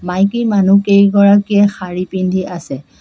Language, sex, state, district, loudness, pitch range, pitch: Assamese, female, Assam, Kamrup Metropolitan, -13 LUFS, 180-200 Hz, 195 Hz